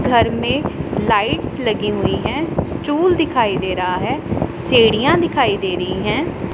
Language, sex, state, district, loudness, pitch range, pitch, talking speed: Hindi, male, Punjab, Pathankot, -17 LUFS, 190-315 Hz, 235 Hz, 145 wpm